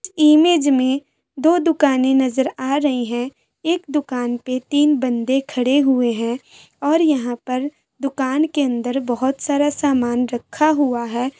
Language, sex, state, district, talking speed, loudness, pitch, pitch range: Hindi, female, Bihar, Samastipur, 145 wpm, -18 LUFS, 270 Hz, 250-295 Hz